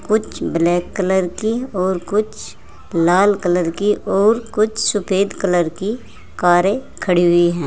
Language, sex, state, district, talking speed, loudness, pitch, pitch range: Hindi, female, Uttar Pradesh, Saharanpur, 140 wpm, -17 LUFS, 190 Hz, 175-215 Hz